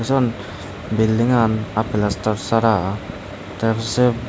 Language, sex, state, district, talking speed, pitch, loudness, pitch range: Chakma, male, Tripura, Unakoti, 110 wpm, 110 Hz, -19 LUFS, 100-115 Hz